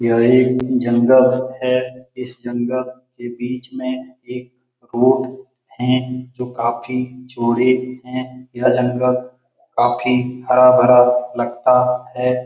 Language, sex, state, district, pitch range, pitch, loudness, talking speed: Hindi, male, Bihar, Lakhisarai, 125-130 Hz, 125 Hz, -17 LUFS, 105 wpm